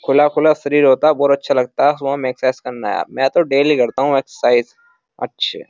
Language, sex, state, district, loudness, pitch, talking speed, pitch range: Hindi, male, Uttar Pradesh, Jyotiba Phule Nagar, -16 LUFS, 140 Hz, 230 wpm, 130-150 Hz